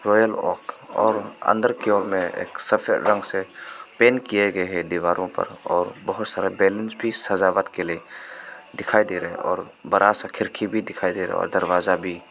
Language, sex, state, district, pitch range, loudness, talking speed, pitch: Hindi, male, Arunachal Pradesh, Papum Pare, 90-110 Hz, -22 LUFS, 195 wpm, 100 Hz